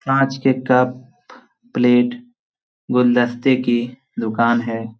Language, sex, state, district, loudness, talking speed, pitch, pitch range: Hindi, male, Jharkhand, Jamtara, -18 LUFS, 95 wpm, 125 Hz, 120-130 Hz